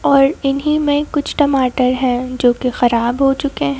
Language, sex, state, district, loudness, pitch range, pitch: Hindi, female, Madhya Pradesh, Bhopal, -16 LUFS, 250-285 Hz, 270 Hz